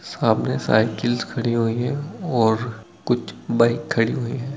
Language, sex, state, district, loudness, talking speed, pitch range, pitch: Hindi, male, Bihar, Araria, -22 LUFS, 145 wpm, 115-125 Hz, 120 Hz